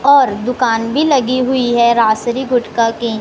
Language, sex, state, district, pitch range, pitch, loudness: Hindi, male, Madhya Pradesh, Katni, 230-260 Hz, 240 Hz, -14 LUFS